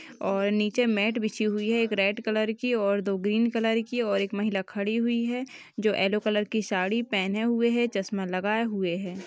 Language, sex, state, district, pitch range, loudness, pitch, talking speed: Hindi, female, Uttar Pradesh, Jyotiba Phule Nagar, 200-230 Hz, -27 LUFS, 215 Hz, 215 wpm